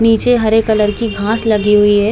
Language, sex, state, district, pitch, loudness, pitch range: Hindi, female, Uttar Pradesh, Hamirpur, 220 Hz, -13 LUFS, 210-225 Hz